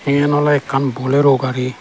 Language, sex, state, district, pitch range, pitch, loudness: Chakma, male, Tripura, Dhalai, 130-145 Hz, 135 Hz, -16 LUFS